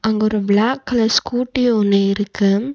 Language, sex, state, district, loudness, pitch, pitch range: Tamil, female, Tamil Nadu, Nilgiris, -17 LUFS, 220 Hz, 205-245 Hz